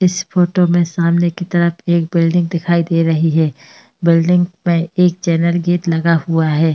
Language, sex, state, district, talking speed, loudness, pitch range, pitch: Hindi, female, Uttar Pradesh, Hamirpur, 180 wpm, -15 LUFS, 165-175 Hz, 170 Hz